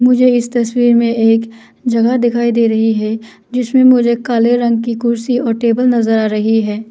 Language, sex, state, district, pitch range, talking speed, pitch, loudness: Hindi, female, Arunachal Pradesh, Lower Dibang Valley, 225-245 Hz, 190 wpm, 235 Hz, -13 LUFS